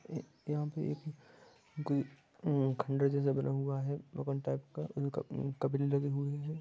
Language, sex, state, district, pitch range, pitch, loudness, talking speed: Magahi, male, Bihar, Gaya, 135-145 Hz, 140 Hz, -36 LUFS, 165 wpm